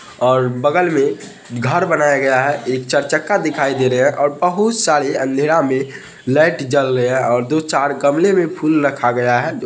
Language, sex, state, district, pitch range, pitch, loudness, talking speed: Hindi, male, Bihar, Madhepura, 130-155 Hz, 140 Hz, -16 LUFS, 190 wpm